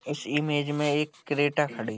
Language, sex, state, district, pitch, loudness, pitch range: Hindi, male, Uttar Pradesh, Hamirpur, 145 Hz, -27 LUFS, 145-150 Hz